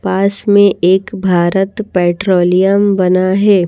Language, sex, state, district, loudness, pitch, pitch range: Hindi, female, Madhya Pradesh, Bhopal, -12 LUFS, 190 Hz, 180-200 Hz